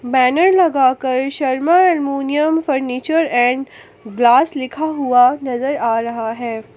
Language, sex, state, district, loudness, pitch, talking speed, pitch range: Hindi, female, Jharkhand, Palamu, -16 LUFS, 265 Hz, 115 wpm, 245-295 Hz